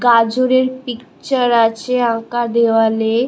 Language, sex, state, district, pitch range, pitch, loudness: Bengali, female, West Bengal, Malda, 230-250 Hz, 240 Hz, -15 LUFS